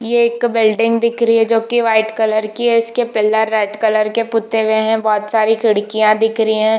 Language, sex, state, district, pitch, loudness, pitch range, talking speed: Hindi, female, Jharkhand, Jamtara, 220 Hz, -15 LUFS, 215-230 Hz, 220 wpm